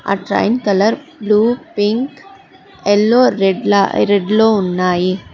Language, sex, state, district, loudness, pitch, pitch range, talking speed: Telugu, female, Telangana, Hyderabad, -14 LUFS, 210 Hz, 195-235 Hz, 100 wpm